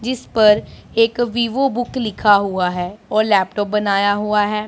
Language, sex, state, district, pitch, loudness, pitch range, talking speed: Hindi, female, Punjab, Pathankot, 210 Hz, -17 LUFS, 205-230 Hz, 165 wpm